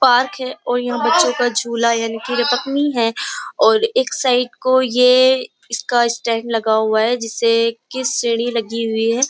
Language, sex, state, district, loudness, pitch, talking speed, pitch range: Hindi, female, Uttar Pradesh, Jyotiba Phule Nagar, -17 LUFS, 240 Hz, 160 wpm, 230-255 Hz